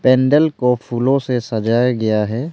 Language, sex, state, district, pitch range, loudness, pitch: Hindi, male, Arunachal Pradesh, Longding, 115-130 Hz, -16 LUFS, 125 Hz